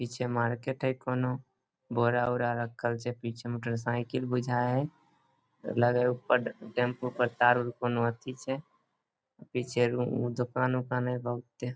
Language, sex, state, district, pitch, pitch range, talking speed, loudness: Maithili, male, Bihar, Samastipur, 125 Hz, 120-125 Hz, 150 wpm, -31 LUFS